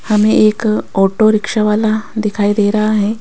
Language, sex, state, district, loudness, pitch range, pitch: Hindi, female, Rajasthan, Jaipur, -13 LUFS, 210-215 Hz, 215 Hz